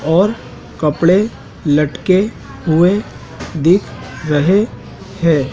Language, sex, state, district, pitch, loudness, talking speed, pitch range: Hindi, male, Madhya Pradesh, Dhar, 170 Hz, -15 LUFS, 75 wpm, 150-190 Hz